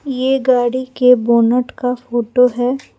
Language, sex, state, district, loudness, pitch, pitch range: Hindi, female, Jharkhand, Palamu, -15 LUFS, 250 Hz, 245-255 Hz